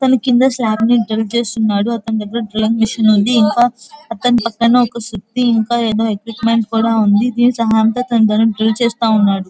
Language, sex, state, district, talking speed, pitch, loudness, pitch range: Telugu, female, Andhra Pradesh, Guntur, 100 wpm, 230 Hz, -14 LUFS, 220-235 Hz